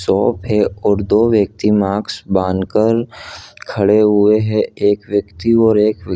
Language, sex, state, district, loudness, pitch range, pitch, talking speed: Hindi, male, Jharkhand, Jamtara, -15 LUFS, 100-110 Hz, 105 Hz, 155 wpm